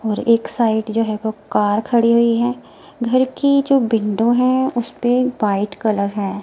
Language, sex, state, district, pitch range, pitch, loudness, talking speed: Hindi, female, Himachal Pradesh, Shimla, 215-250 Hz, 230 Hz, -17 LUFS, 185 wpm